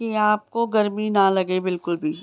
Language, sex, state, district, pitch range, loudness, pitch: Hindi, female, Bihar, Begusarai, 185-215 Hz, -21 LUFS, 205 Hz